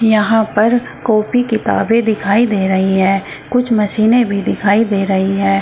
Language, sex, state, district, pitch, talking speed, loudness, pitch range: Hindi, female, Uttar Pradesh, Shamli, 215 Hz, 160 wpm, -14 LUFS, 195-225 Hz